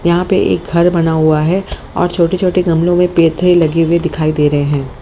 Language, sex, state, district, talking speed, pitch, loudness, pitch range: Hindi, female, Haryana, Jhajjar, 215 wpm, 170 Hz, -13 LUFS, 160-180 Hz